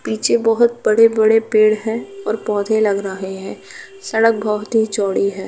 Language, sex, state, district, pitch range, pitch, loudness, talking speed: Hindi, female, Uttar Pradesh, Jalaun, 200-225 Hz, 215 Hz, -16 LUFS, 165 wpm